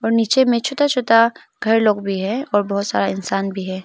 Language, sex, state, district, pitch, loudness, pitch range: Hindi, female, Arunachal Pradesh, Papum Pare, 220 Hz, -18 LUFS, 195-235 Hz